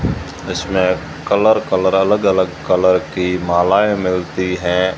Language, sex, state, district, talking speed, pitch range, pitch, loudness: Hindi, male, Rajasthan, Jaisalmer, 120 wpm, 90-95 Hz, 90 Hz, -16 LUFS